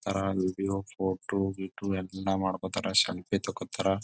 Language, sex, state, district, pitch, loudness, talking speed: Kannada, male, Karnataka, Bijapur, 95 Hz, -31 LUFS, 120 wpm